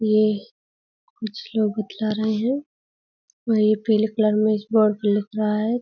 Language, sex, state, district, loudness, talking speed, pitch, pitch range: Hindi, female, Uttar Pradesh, Budaun, -22 LUFS, 165 wpm, 215 Hz, 215-220 Hz